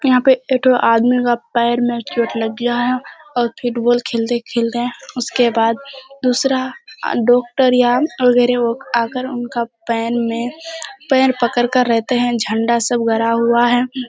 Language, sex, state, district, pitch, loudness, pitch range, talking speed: Hindi, female, Bihar, Kishanganj, 245 Hz, -16 LUFS, 235-255 Hz, 145 wpm